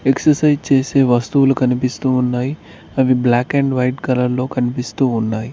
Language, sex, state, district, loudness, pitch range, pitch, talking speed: Telugu, male, Telangana, Mahabubabad, -16 LUFS, 125-135 Hz, 130 Hz, 140 wpm